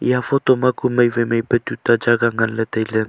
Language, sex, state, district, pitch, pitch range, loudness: Wancho, male, Arunachal Pradesh, Longding, 120 Hz, 115-125 Hz, -18 LUFS